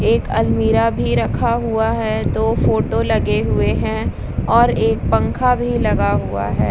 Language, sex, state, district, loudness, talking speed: Hindi, female, Bihar, Vaishali, -17 LUFS, 160 wpm